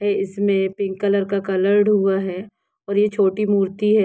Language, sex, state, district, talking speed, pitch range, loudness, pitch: Hindi, female, Jharkhand, Jamtara, 190 wpm, 195-205 Hz, -19 LUFS, 200 Hz